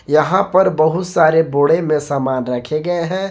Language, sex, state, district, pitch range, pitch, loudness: Hindi, male, Jharkhand, Garhwa, 145-175 Hz, 160 Hz, -16 LUFS